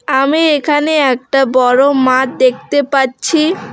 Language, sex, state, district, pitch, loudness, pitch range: Bengali, female, West Bengal, Alipurduar, 270 Hz, -12 LUFS, 260-295 Hz